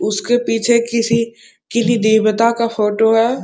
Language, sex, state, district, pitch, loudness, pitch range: Hindi, male, Bihar, Muzaffarpur, 230 Hz, -15 LUFS, 220-235 Hz